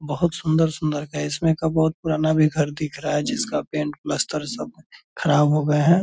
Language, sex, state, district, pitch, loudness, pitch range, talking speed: Hindi, male, Bihar, Purnia, 155 Hz, -22 LUFS, 150-160 Hz, 210 wpm